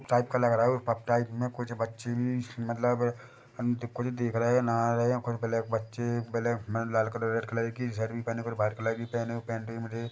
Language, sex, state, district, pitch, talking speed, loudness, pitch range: Hindi, male, Chhattisgarh, Bilaspur, 115 Hz, 165 wpm, -30 LUFS, 115-120 Hz